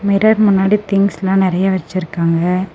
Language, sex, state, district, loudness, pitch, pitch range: Tamil, female, Tamil Nadu, Namakkal, -14 LUFS, 190 Hz, 180-200 Hz